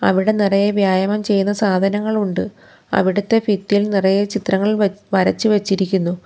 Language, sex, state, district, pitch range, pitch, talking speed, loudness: Malayalam, female, Kerala, Kollam, 190-210 Hz, 200 Hz, 125 wpm, -17 LUFS